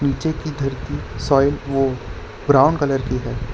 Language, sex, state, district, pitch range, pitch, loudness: Hindi, male, Gujarat, Valsad, 125-145 Hz, 135 Hz, -20 LUFS